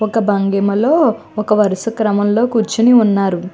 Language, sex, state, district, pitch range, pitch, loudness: Telugu, female, Andhra Pradesh, Chittoor, 200-225 Hz, 215 Hz, -14 LUFS